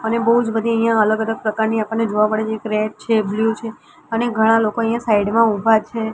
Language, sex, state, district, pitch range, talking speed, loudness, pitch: Gujarati, female, Gujarat, Gandhinagar, 215-230 Hz, 225 wpm, -18 LUFS, 225 Hz